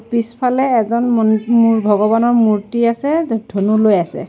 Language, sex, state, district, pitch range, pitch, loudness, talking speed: Assamese, female, Assam, Sonitpur, 215-235 Hz, 230 Hz, -15 LUFS, 140 wpm